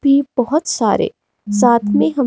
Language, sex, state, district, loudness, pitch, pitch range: Hindi, female, Himachal Pradesh, Shimla, -16 LUFS, 265 Hz, 235-285 Hz